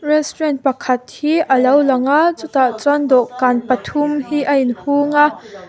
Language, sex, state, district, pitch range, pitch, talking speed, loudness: Mizo, female, Mizoram, Aizawl, 255-295 Hz, 285 Hz, 180 wpm, -16 LUFS